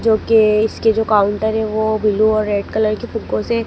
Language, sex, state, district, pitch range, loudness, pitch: Hindi, female, Madhya Pradesh, Dhar, 215-225 Hz, -16 LUFS, 220 Hz